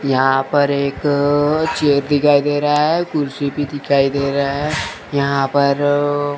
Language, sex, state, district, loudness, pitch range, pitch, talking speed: Hindi, male, Chandigarh, Chandigarh, -17 LUFS, 140-145 Hz, 145 Hz, 150 wpm